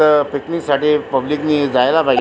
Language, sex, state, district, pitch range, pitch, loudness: Marathi, male, Maharashtra, Aurangabad, 140-150 Hz, 150 Hz, -16 LUFS